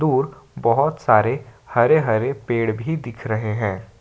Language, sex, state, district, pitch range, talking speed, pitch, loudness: Hindi, male, Jharkhand, Ranchi, 110-140 Hz, 150 wpm, 120 Hz, -20 LUFS